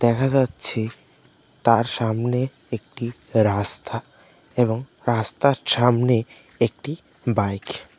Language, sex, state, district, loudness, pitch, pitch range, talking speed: Bengali, male, Tripura, West Tripura, -22 LUFS, 120 Hz, 110-130 Hz, 90 wpm